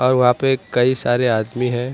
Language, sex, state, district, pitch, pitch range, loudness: Hindi, male, Maharashtra, Mumbai Suburban, 125 Hz, 120-130 Hz, -18 LUFS